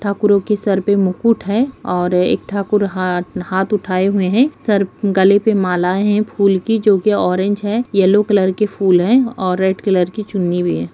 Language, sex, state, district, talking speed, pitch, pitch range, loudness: Hindi, female, Uttar Pradesh, Jalaun, 205 wpm, 200 Hz, 185-210 Hz, -15 LUFS